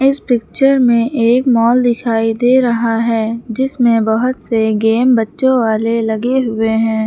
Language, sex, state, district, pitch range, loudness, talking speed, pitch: Hindi, female, Uttar Pradesh, Lucknow, 225-250 Hz, -14 LUFS, 150 wpm, 230 Hz